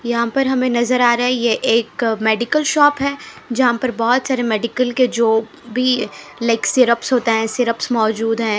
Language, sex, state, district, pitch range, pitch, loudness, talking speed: Hindi, female, Haryana, Charkhi Dadri, 225-255 Hz, 240 Hz, -17 LUFS, 175 wpm